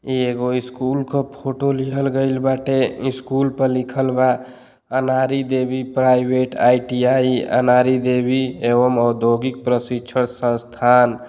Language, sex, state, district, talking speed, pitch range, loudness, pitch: Bhojpuri, male, Uttar Pradesh, Deoria, 110 wpm, 125-130 Hz, -18 LUFS, 130 Hz